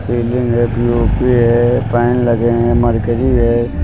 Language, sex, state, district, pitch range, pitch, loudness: Hindi, male, Uttar Pradesh, Lucknow, 115-120 Hz, 120 Hz, -14 LUFS